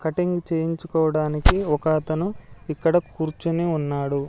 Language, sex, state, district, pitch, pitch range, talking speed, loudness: Telugu, male, Andhra Pradesh, Sri Satya Sai, 160 Hz, 155-170 Hz, 100 wpm, -23 LUFS